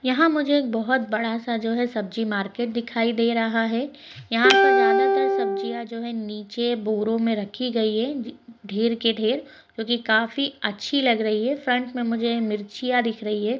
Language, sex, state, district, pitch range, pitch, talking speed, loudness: Hindi, female, Bihar, Begusarai, 225-255 Hz, 235 Hz, 190 wpm, -23 LUFS